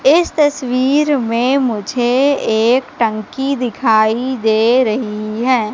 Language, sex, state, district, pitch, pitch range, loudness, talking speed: Hindi, female, Madhya Pradesh, Katni, 250 Hz, 220-265 Hz, -15 LUFS, 105 wpm